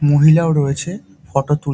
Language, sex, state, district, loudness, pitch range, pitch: Bengali, male, West Bengal, Dakshin Dinajpur, -16 LUFS, 140-160 Hz, 150 Hz